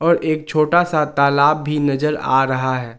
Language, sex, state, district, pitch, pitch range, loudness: Hindi, male, Jharkhand, Garhwa, 150 Hz, 135-155 Hz, -17 LUFS